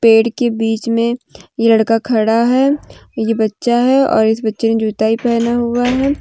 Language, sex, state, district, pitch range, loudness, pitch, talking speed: Hindi, female, Jharkhand, Deoghar, 225-245 Hz, -14 LUFS, 230 Hz, 185 wpm